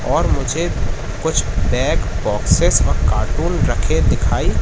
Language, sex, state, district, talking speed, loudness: Hindi, male, Madhya Pradesh, Katni, 115 wpm, -18 LUFS